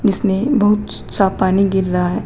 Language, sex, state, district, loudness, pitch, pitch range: Hindi, female, Uttar Pradesh, Shamli, -15 LUFS, 195 Hz, 190-210 Hz